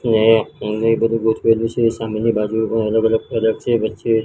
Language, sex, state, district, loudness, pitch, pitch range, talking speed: Gujarati, male, Gujarat, Gandhinagar, -18 LUFS, 115 Hz, 110-115 Hz, 170 wpm